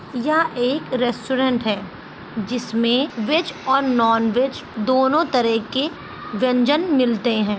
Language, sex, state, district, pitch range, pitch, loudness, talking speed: Hindi, female, Uttar Pradesh, Ghazipur, 230-275 Hz, 250 Hz, -20 LUFS, 110 wpm